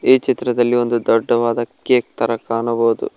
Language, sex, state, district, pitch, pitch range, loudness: Kannada, male, Karnataka, Koppal, 120 Hz, 115-125 Hz, -17 LUFS